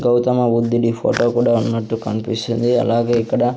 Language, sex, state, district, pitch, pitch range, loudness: Telugu, male, Andhra Pradesh, Sri Satya Sai, 120 Hz, 115-120 Hz, -18 LUFS